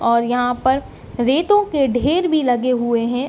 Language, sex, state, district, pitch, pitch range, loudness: Hindi, female, Jharkhand, Sahebganj, 255 Hz, 245-290 Hz, -18 LUFS